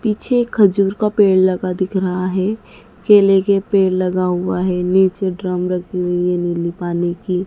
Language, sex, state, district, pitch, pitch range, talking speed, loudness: Hindi, female, Madhya Pradesh, Dhar, 185 Hz, 180-200 Hz, 175 wpm, -16 LUFS